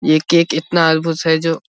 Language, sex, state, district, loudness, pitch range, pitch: Hindi, male, Bihar, Vaishali, -15 LUFS, 160-165 Hz, 160 Hz